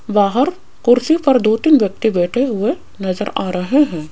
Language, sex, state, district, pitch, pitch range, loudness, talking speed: Hindi, female, Rajasthan, Jaipur, 225 Hz, 195-270 Hz, -16 LUFS, 175 wpm